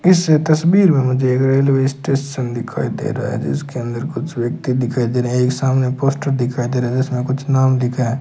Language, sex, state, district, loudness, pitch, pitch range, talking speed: Hindi, male, Rajasthan, Bikaner, -17 LUFS, 130 Hz, 125-140 Hz, 220 wpm